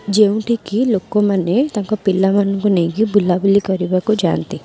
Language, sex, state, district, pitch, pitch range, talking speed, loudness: Odia, female, Odisha, Khordha, 200 Hz, 190-215 Hz, 105 wpm, -16 LUFS